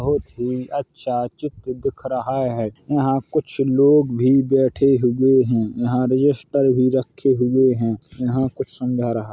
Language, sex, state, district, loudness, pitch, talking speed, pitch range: Hindi, male, Uttar Pradesh, Hamirpur, -19 LUFS, 130 Hz, 175 wpm, 125-135 Hz